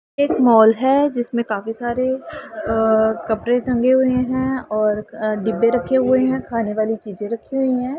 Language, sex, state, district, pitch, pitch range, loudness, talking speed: Hindi, female, Punjab, Pathankot, 240 Hz, 220-260 Hz, -18 LUFS, 165 wpm